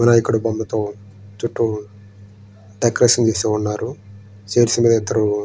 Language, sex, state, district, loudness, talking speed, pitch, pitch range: Telugu, male, Andhra Pradesh, Srikakulam, -18 LUFS, 55 wpm, 105 Hz, 100-115 Hz